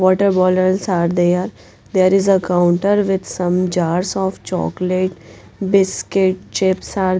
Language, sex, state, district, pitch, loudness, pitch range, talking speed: English, female, Punjab, Pathankot, 185 Hz, -17 LUFS, 180-195 Hz, 140 wpm